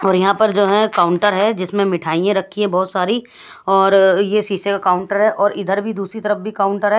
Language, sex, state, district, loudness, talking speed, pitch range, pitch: Hindi, female, Bihar, West Champaran, -16 LUFS, 230 wpm, 190-210 Hz, 200 Hz